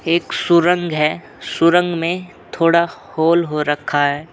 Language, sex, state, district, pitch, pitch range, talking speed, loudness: Hindi, male, Uttar Pradesh, Jalaun, 165 Hz, 150-170 Hz, 140 wpm, -17 LUFS